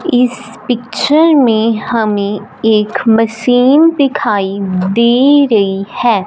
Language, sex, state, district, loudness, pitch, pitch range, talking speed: Hindi, female, Punjab, Fazilka, -11 LUFS, 230 Hz, 210-265 Hz, 95 wpm